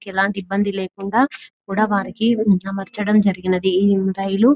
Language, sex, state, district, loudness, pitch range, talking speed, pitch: Telugu, female, Telangana, Nalgonda, -19 LUFS, 195-210 Hz, 105 wpm, 195 Hz